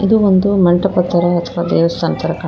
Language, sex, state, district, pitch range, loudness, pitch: Kannada, female, Karnataka, Koppal, 170-195 Hz, -14 LUFS, 175 Hz